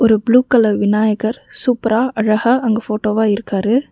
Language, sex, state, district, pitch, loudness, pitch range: Tamil, female, Tamil Nadu, Nilgiris, 220 Hz, -15 LUFS, 215-240 Hz